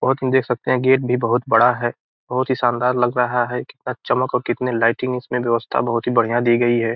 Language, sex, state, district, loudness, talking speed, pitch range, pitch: Hindi, male, Bihar, Gopalganj, -19 LUFS, 240 wpm, 120-125 Hz, 125 Hz